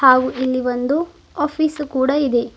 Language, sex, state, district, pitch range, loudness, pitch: Kannada, female, Karnataka, Bidar, 255-295 Hz, -19 LUFS, 265 Hz